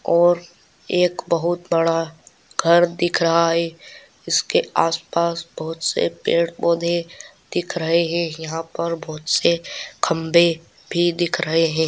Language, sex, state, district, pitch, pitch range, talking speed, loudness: Hindi, male, Andhra Pradesh, Guntur, 170 Hz, 165-170 Hz, 130 wpm, -20 LUFS